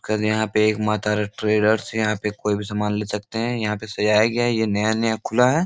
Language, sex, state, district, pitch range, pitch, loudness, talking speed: Hindi, male, Bihar, Supaul, 105-110 Hz, 105 Hz, -21 LUFS, 265 wpm